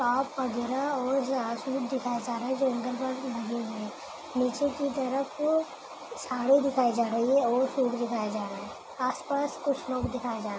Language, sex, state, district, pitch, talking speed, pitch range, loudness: Hindi, female, Chhattisgarh, Kabirdham, 255 Hz, 185 wpm, 240-275 Hz, -29 LUFS